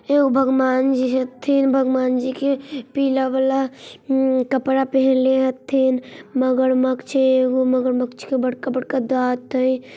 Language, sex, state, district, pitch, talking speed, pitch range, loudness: Maithili, male, Bihar, Samastipur, 260 Hz, 130 wpm, 255-265 Hz, -19 LUFS